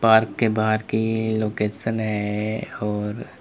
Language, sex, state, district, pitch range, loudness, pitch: Hindi, male, Uttar Pradesh, Lalitpur, 105-110 Hz, -23 LUFS, 110 Hz